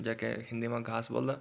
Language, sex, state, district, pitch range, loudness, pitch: Garhwali, male, Uttarakhand, Tehri Garhwal, 115-120 Hz, -35 LUFS, 115 Hz